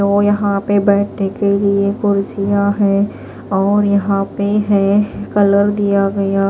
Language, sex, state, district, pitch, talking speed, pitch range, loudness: Hindi, female, Maharashtra, Washim, 200 Hz, 150 wpm, 200-205 Hz, -15 LUFS